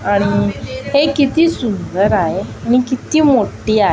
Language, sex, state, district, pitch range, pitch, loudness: Marathi, female, Maharashtra, Aurangabad, 200-285 Hz, 245 Hz, -15 LUFS